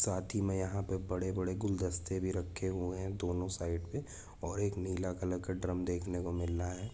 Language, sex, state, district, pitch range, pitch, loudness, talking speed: Hindi, male, Jharkhand, Jamtara, 90-95 Hz, 95 Hz, -37 LUFS, 225 wpm